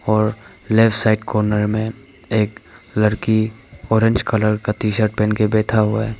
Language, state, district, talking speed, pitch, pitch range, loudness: Hindi, Arunachal Pradesh, Papum Pare, 165 wpm, 110 Hz, 105-110 Hz, -18 LUFS